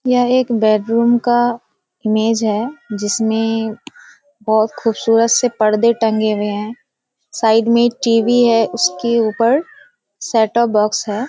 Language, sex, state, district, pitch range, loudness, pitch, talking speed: Hindi, female, Bihar, Kishanganj, 215-240 Hz, -15 LUFS, 230 Hz, 120 wpm